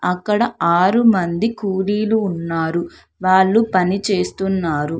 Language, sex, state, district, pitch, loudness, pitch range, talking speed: Telugu, female, Telangana, Hyderabad, 190 Hz, -17 LUFS, 170-210 Hz, 95 wpm